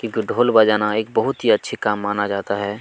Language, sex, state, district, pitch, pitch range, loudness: Hindi, male, Chhattisgarh, Kabirdham, 105 Hz, 100-110 Hz, -19 LUFS